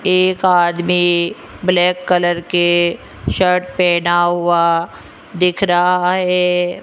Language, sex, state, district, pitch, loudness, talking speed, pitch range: Hindi, female, Rajasthan, Jaipur, 180 Hz, -15 LUFS, 95 wpm, 175-180 Hz